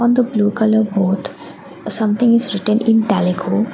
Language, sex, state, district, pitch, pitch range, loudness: English, female, Assam, Kamrup Metropolitan, 215 Hz, 200-225 Hz, -16 LUFS